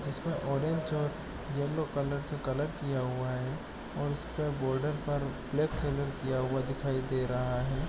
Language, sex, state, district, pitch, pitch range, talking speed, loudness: Hindi, male, Bihar, East Champaran, 140 Hz, 130-145 Hz, 150 wpm, -34 LUFS